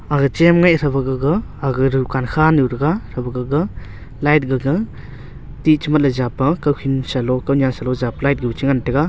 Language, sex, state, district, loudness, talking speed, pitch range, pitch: Wancho, male, Arunachal Pradesh, Longding, -17 LUFS, 170 wpm, 125-150 Hz, 135 Hz